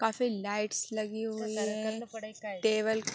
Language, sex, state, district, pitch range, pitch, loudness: Hindi, female, Uttar Pradesh, Hamirpur, 215-220 Hz, 220 Hz, -33 LUFS